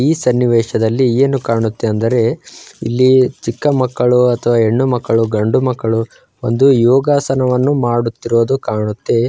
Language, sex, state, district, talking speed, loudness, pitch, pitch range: Kannada, male, Karnataka, Bijapur, 110 wpm, -14 LUFS, 125 Hz, 115-130 Hz